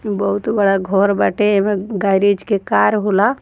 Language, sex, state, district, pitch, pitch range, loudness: Bhojpuri, female, Bihar, Muzaffarpur, 200 Hz, 195-210 Hz, -16 LUFS